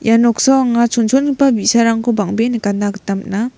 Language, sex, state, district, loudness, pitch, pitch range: Garo, female, Meghalaya, West Garo Hills, -14 LUFS, 230 Hz, 205-245 Hz